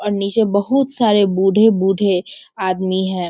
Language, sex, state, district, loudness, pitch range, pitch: Hindi, female, Bihar, Sitamarhi, -16 LUFS, 190-215 Hz, 200 Hz